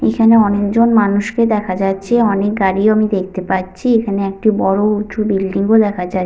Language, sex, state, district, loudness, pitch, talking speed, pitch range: Bengali, female, Jharkhand, Sahebganj, -14 LUFS, 205 Hz, 180 wpm, 195-215 Hz